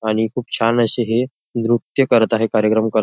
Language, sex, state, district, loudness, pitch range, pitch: Marathi, male, Maharashtra, Nagpur, -18 LUFS, 110-120 Hz, 115 Hz